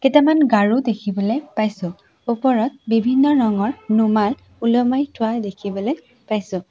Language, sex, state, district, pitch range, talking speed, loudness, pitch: Assamese, female, Assam, Sonitpur, 210-260 Hz, 105 wpm, -19 LUFS, 230 Hz